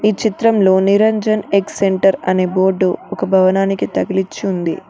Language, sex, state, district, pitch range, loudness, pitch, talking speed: Telugu, female, Telangana, Mahabubabad, 185-210 Hz, -15 LUFS, 195 Hz, 135 wpm